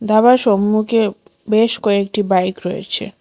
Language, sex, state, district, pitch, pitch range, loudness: Bengali, female, Assam, Hailakandi, 210 Hz, 200-220 Hz, -15 LUFS